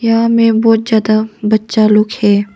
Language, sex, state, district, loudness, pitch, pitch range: Hindi, female, Arunachal Pradesh, Longding, -12 LUFS, 220 Hz, 215-225 Hz